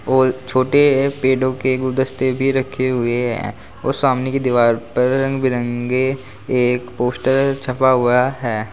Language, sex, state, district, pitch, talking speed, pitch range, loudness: Hindi, male, Uttar Pradesh, Saharanpur, 130 Hz, 145 wpm, 125-130 Hz, -18 LUFS